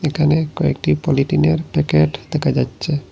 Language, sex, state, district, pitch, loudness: Bengali, male, Assam, Hailakandi, 140 Hz, -18 LUFS